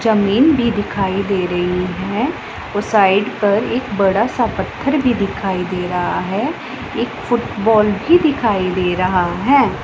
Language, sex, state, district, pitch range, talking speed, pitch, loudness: Hindi, female, Punjab, Pathankot, 190-235 Hz, 150 wpm, 205 Hz, -17 LUFS